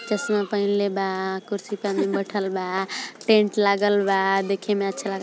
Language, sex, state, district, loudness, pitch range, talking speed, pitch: Hindi, female, Uttar Pradesh, Ghazipur, -23 LUFS, 195-205 Hz, 170 wpm, 200 Hz